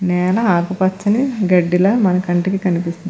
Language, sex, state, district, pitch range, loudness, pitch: Telugu, female, Andhra Pradesh, Krishna, 180-195 Hz, -16 LUFS, 185 Hz